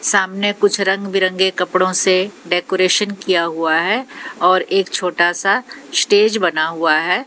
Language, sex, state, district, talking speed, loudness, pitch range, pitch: Hindi, female, Haryana, Jhajjar, 150 wpm, -16 LUFS, 180-205 Hz, 190 Hz